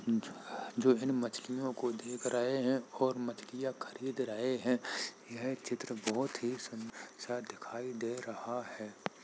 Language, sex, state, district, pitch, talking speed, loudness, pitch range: Hindi, male, Uttar Pradesh, Jalaun, 125 Hz, 145 wpm, -37 LUFS, 120-130 Hz